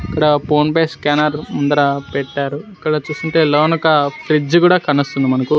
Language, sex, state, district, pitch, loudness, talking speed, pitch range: Telugu, male, Andhra Pradesh, Sri Satya Sai, 150 Hz, -15 LUFS, 140 wpm, 140-155 Hz